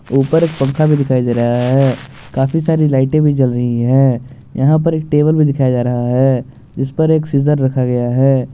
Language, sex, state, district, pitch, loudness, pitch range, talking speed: Hindi, male, Jharkhand, Garhwa, 135 Hz, -14 LUFS, 125-150 Hz, 210 wpm